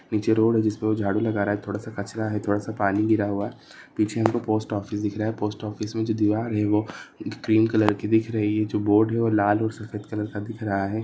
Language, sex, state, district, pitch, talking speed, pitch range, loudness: Marwari, male, Rajasthan, Nagaur, 105 Hz, 275 wpm, 105-110 Hz, -24 LUFS